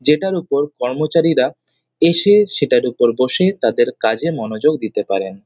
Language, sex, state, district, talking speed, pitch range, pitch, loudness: Bengali, male, West Bengal, North 24 Parganas, 130 wpm, 120-165 Hz, 145 Hz, -16 LUFS